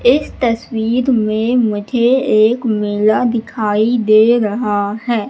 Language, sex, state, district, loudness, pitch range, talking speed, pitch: Hindi, female, Madhya Pradesh, Katni, -15 LUFS, 215-245 Hz, 115 wpm, 225 Hz